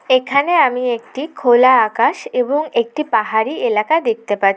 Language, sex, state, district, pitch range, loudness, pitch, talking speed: Bengali, female, West Bengal, Jalpaiguri, 220-280 Hz, -16 LUFS, 250 Hz, 145 wpm